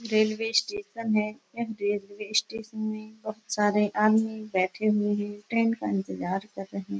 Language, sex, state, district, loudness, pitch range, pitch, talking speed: Hindi, female, Uttar Pradesh, Etah, -28 LUFS, 205-220 Hz, 215 Hz, 155 wpm